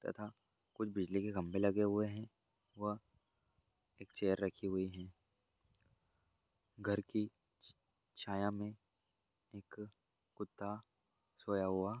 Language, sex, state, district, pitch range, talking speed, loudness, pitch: Hindi, male, Uttar Pradesh, Jalaun, 95-105 Hz, 115 wpm, -41 LUFS, 100 Hz